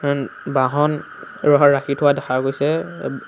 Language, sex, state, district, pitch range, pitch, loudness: Assamese, male, Assam, Sonitpur, 135-145 Hz, 140 Hz, -19 LUFS